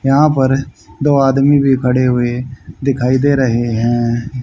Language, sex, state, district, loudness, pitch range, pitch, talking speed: Hindi, male, Haryana, Jhajjar, -14 LUFS, 120-135 Hz, 130 Hz, 150 wpm